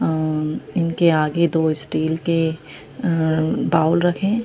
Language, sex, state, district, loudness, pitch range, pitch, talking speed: Hindi, female, Madhya Pradesh, Bhopal, -19 LUFS, 155-170 Hz, 160 Hz, 160 wpm